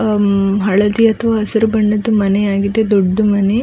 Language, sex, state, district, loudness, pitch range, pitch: Kannada, female, Karnataka, Dakshina Kannada, -14 LUFS, 200-220 Hz, 210 Hz